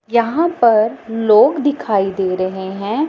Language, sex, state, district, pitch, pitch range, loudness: Hindi, female, Punjab, Pathankot, 220 Hz, 195-240 Hz, -16 LUFS